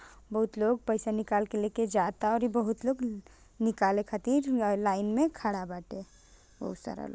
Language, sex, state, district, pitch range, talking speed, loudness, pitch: Bhojpuri, female, Bihar, Gopalganj, 205-235 Hz, 150 wpm, -30 LUFS, 215 Hz